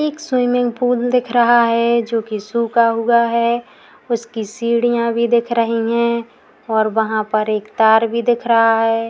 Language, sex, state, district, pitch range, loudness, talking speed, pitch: Hindi, female, Uttar Pradesh, Muzaffarnagar, 225-240 Hz, -16 LUFS, 165 wpm, 235 Hz